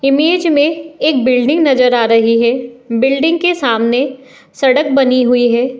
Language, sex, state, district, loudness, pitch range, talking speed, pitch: Hindi, female, Uttar Pradesh, Muzaffarnagar, -12 LUFS, 245-290 Hz, 155 wpm, 260 Hz